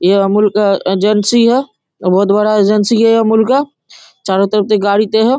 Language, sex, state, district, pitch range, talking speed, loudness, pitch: Hindi, male, Bihar, Darbhanga, 200-225 Hz, 180 wpm, -12 LUFS, 210 Hz